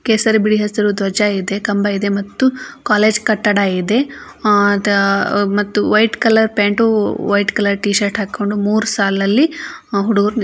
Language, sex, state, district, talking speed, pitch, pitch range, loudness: Kannada, female, Karnataka, Belgaum, 140 wpm, 205 Hz, 200-220 Hz, -15 LUFS